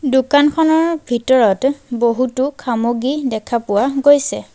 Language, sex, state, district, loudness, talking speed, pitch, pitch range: Assamese, female, Assam, Sonitpur, -16 LUFS, 90 wpm, 260 Hz, 235-285 Hz